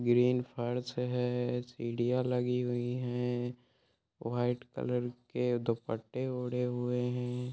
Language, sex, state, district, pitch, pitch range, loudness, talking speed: Hindi, male, Uttar Pradesh, Muzaffarnagar, 125 Hz, 120-125 Hz, -34 LUFS, 110 wpm